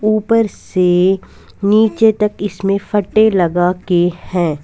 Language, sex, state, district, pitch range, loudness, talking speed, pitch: Hindi, female, Punjab, Fazilka, 180-215 Hz, -15 LUFS, 115 wpm, 195 Hz